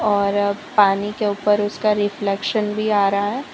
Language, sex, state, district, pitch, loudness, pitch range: Hindi, female, Gujarat, Valsad, 205 Hz, -19 LUFS, 200-210 Hz